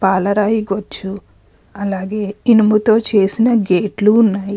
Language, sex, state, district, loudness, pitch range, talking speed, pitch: Telugu, female, Andhra Pradesh, Krishna, -15 LUFS, 195-215 Hz, 90 wpm, 205 Hz